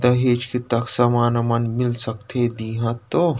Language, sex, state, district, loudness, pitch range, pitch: Chhattisgarhi, male, Chhattisgarh, Rajnandgaon, -20 LUFS, 115-125 Hz, 120 Hz